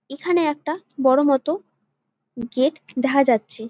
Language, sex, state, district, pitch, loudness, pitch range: Bengali, female, West Bengal, Jalpaiguri, 275 Hz, -21 LUFS, 260-305 Hz